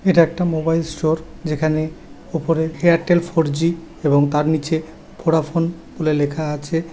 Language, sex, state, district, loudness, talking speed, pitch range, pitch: Bengali, male, West Bengal, Paschim Medinipur, -19 LUFS, 140 wpm, 155-165 Hz, 160 Hz